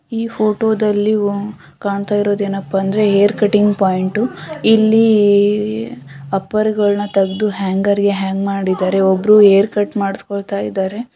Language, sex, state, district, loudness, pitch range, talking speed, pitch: Kannada, female, Karnataka, Shimoga, -15 LUFS, 195-210 Hz, 130 wpm, 200 Hz